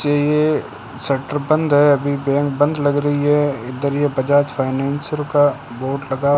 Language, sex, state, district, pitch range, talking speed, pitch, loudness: Hindi, male, Rajasthan, Bikaner, 135-145 Hz, 170 wpm, 145 Hz, -18 LUFS